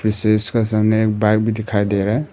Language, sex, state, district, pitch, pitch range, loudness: Hindi, male, Arunachal Pradesh, Papum Pare, 110 Hz, 105-110 Hz, -17 LUFS